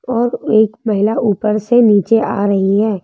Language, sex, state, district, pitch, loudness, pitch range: Hindi, female, Madhya Pradesh, Bhopal, 215 Hz, -14 LUFS, 205-225 Hz